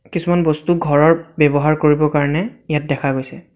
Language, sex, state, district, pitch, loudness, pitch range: Assamese, male, Assam, Sonitpur, 150 Hz, -16 LUFS, 145-165 Hz